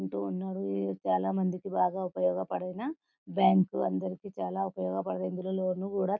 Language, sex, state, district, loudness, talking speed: Telugu, female, Telangana, Karimnagar, -31 LUFS, 135 wpm